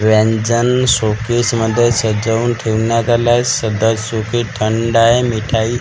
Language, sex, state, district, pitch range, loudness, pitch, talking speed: Marathi, male, Maharashtra, Gondia, 110-120 Hz, -14 LUFS, 115 Hz, 145 wpm